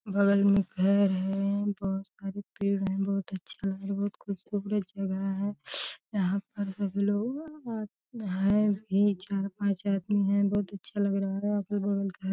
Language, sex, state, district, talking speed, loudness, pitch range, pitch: Hindi, female, Uttar Pradesh, Deoria, 160 wpm, -30 LUFS, 195-205 Hz, 200 Hz